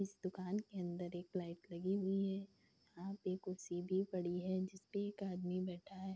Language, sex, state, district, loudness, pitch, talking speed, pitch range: Hindi, female, Bihar, Darbhanga, -43 LUFS, 185 Hz, 195 wpm, 180-195 Hz